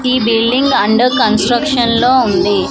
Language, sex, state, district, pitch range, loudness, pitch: Telugu, female, Andhra Pradesh, Manyam, 230-255 Hz, -12 LUFS, 245 Hz